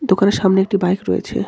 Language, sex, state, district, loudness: Bengali, male, West Bengal, Cooch Behar, -16 LUFS